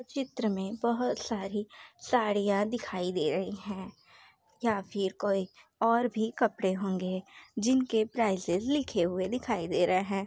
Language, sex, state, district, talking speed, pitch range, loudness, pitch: Hindi, female, Uttar Pradesh, Jalaun, 140 wpm, 190-235 Hz, -31 LUFS, 210 Hz